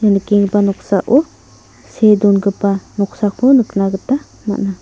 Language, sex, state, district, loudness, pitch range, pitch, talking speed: Garo, female, Meghalaya, South Garo Hills, -14 LUFS, 200-215 Hz, 205 Hz, 110 wpm